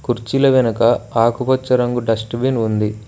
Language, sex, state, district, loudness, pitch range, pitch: Telugu, male, Telangana, Mahabubabad, -17 LUFS, 115-125 Hz, 120 Hz